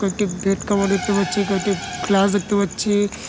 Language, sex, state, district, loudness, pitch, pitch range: Bengali, male, West Bengal, Malda, -20 LUFS, 200 Hz, 195-205 Hz